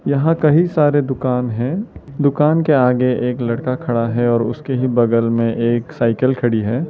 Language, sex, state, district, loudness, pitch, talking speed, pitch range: Hindi, male, Arunachal Pradesh, Lower Dibang Valley, -17 LUFS, 125 Hz, 185 wpm, 120-145 Hz